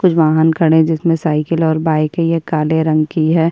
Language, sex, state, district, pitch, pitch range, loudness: Hindi, female, Uttar Pradesh, Budaun, 160 Hz, 155-165 Hz, -14 LUFS